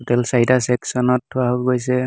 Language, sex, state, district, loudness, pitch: Assamese, male, Assam, Hailakandi, -18 LUFS, 125 Hz